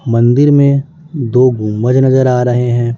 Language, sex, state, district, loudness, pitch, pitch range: Hindi, male, Bihar, West Champaran, -11 LUFS, 125 Hz, 120-140 Hz